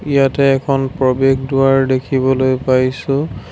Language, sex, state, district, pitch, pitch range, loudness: Assamese, male, Assam, Sonitpur, 135 Hz, 130-135 Hz, -15 LUFS